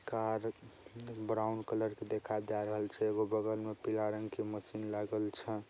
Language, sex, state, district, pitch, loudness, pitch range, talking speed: Maithili, male, Bihar, Saharsa, 110 Hz, -38 LUFS, 105-110 Hz, 190 wpm